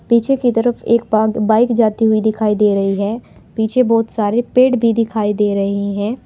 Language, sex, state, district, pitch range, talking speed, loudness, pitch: Hindi, female, Uttar Pradesh, Saharanpur, 210-235 Hz, 190 wpm, -15 LUFS, 220 Hz